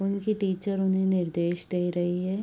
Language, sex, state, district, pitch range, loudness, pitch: Hindi, female, Bihar, Araria, 175-195 Hz, -27 LUFS, 190 Hz